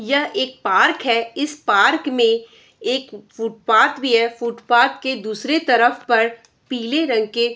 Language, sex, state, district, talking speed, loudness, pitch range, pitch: Hindi, female, Bihar, Araria, 160 wpm, -18 LUFS, 230-270 Hz, 240 Hz